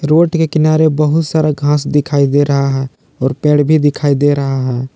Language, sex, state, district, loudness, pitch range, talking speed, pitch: Hindi, male, Jharkhand, Palamu, -13 LUFS, 140-155 Hz, 205 wpm, 145 Hz